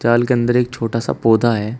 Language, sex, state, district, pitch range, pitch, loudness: Hindi, male, Uttar Pradesh, Shamli, 115-120 Hz, 120 Hz, -17 LUFS